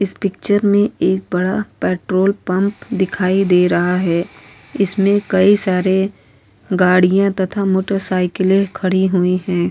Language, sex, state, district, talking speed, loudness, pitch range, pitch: Hindi, female, Uttar Pradesh, Hamirpur, 125 wpm, -16 LUFS, 180-200 Hz, 190 Hz